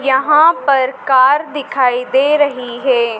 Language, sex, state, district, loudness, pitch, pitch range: Hindi, female, Madhya Pradesh, Dhar, -13 LUFS, 265 Hz, 250-290 Hz